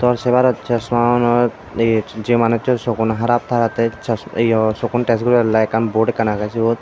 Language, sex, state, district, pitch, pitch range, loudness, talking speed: Chakma, male, Tripura, Dhalai, 115 Hz, 110-120 Hz, -17 LUFS, 160 wpm